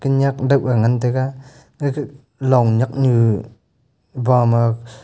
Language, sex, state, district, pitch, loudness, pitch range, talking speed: Wancho, male, Arunachal Pradesh, Longding, 125 Hz, -18 LUFS, 115-135 Hz, 130 wpm